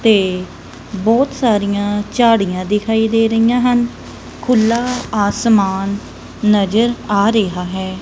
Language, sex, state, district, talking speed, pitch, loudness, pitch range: Punjabi, female, Punjab, Kapurthala, 105 wpm, 215 Hz, -15 LUFS, 200-230 Hz